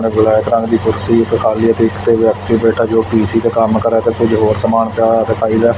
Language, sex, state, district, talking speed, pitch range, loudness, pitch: Punjabi, male, Punjab, Fazilka, 280 wpm, 110-115 Hz, -13 LUFS, 115 Hz